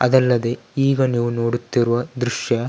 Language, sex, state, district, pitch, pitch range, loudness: Kannada, male, Karnataka, Dakshina Kannada, 120 Hz, 120-125 Hz, -20 LUFS